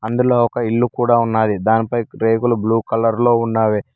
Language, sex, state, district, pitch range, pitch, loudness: Telugu, male, Telangana, Mahabubabad, 110-120 Hz, 115 Hz, -17 LUFS